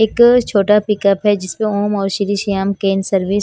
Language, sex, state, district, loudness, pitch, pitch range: Hindi, female, Haryana, Charkhi Dadri, -15 LUFS, 200 Hz, 195-210 Hz